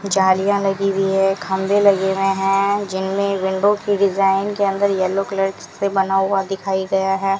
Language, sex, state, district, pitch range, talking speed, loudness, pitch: Hindi, female, Rajasthan, Bikaner, 195-200 Hz, 180 wpm, -18 LUFS, 195 Hz